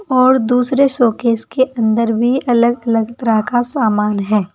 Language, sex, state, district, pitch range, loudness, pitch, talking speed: Hindi, female, Uttar Pradesh, Saharanpur, 225-255 Hz, -15 LUFS, 235 Hz, 160 wpm